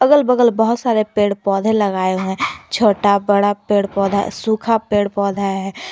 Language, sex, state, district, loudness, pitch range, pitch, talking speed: Hindi, female, Jharkhand, Garhwa, -17 LUFS, 200-220 Hz, 205 Hz, 170 wpm